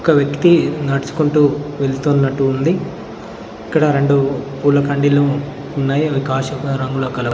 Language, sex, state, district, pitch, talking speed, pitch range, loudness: Telugu, male, Telangana, Mahabubabad, 140 Hz, 115 wpm, 135-145 Hz, -16 LUFS